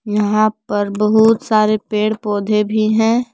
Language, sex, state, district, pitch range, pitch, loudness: Hindi, female, Jharkhand, Palamu, 210-220 Hz, 215 Hz, -15 LUFS